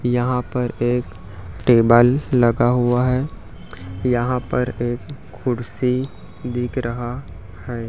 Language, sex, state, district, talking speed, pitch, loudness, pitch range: Hindi, male, Chhattisgarh, Raipur, 105 wpm, 120 Hz, -20 LUFS, 115-125 Hz